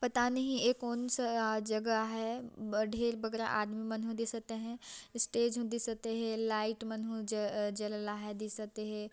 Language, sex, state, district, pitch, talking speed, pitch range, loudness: Chhattisgarhi, female, Chhattisgarh, Jashpur, 225 Hz, 160 wpm, 215-235 Hz, -36 LUFS